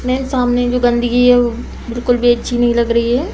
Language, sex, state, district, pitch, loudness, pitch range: Hindi, female, Bihar, Samastipur, 245 Hz, -14 LUFS, 240-250 Hz